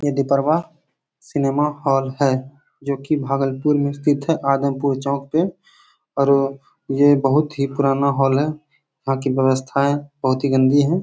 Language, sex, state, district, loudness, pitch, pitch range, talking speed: Hindi, male, Bihar, Bhagalpur, -19 LUFS, 140 Hz, 135-145 Hz, 150 wpm